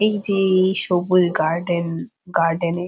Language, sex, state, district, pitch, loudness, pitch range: Bengali, female, West Bengal, Purulia, 175 Hz, -19 LUFS, 165-190 Hz